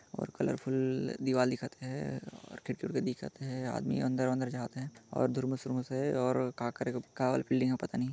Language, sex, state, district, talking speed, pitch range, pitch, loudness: Chhattisgarhi, male, Chhattisgarh, Jashpur, 205 wpm, 125-130 Hz, 130 Hz, -34 LUFS